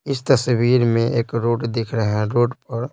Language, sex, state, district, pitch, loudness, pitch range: Hindi, male, Bihar, Patna, 120 Hz, -19 LUFS, 115-125 Hz